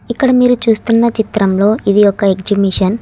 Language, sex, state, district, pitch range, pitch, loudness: Telugu, female, Telangana, Hyderabad, 200-230 Hz, 210 Hz, -12 LUFS